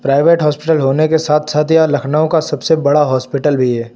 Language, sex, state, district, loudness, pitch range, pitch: Hindi, male, Uttar Pradesh, Lucknow, -13 LUFS, 140-160 Hz, 150 Hz